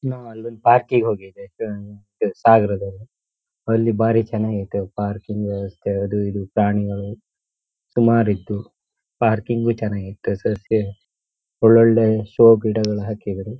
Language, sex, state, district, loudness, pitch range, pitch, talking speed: Kannada, male, Karnataka, Shimoga, -19 LUFS, 100-115 Hz, 110 Hz, 110 wpm